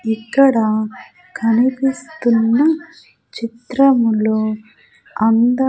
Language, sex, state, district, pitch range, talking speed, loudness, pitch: Telugu, female, Andhra Pradesh, Sri Satya Sai, 220-265 Hz, 55 wpm, -16 LUFS, 235 Hz